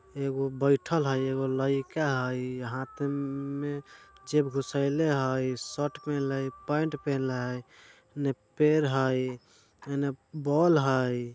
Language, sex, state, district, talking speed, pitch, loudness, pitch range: Bajjika, male, Bihar, Vaishali, 110 wpm, 140 Hz, -29 LUFS, 130-145 Hz